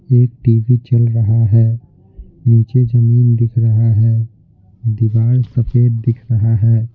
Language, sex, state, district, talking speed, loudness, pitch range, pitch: Hindi, male, Bihar, Patna, 130 wpm, -14 LUFS, 115-120 Hz, 115 Hz